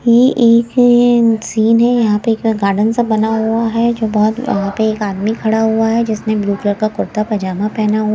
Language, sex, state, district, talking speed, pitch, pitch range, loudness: Hindi, female, Himachal Pradesh, Shimla, 215 wpm, 220 Hz, 215-230 Hz, -14 LUFS